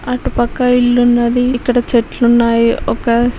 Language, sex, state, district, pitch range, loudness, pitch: Telugu, female, Telangana, Karimnagar, 235-245 Hz, -13 LUFS, 240 Hz